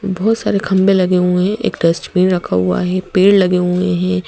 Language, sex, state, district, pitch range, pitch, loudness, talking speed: Hindi, female, Madhya Pradesh, Bhopal, 180-195 Hz, 185 Hz, -14 LUFS, 210 wpm